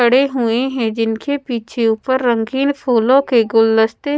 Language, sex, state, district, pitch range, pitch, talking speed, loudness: Hindi, female, Bihar, Patna, 225-265 Hz, 240 Hz, 145 wpm, -16 LUFS